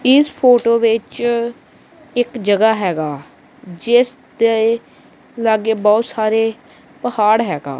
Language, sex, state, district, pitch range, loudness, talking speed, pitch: Punjabi, female, Punjab, Kapurthala, 215-240 Hz, -16 LUFS, 100 wpm, 230 Hz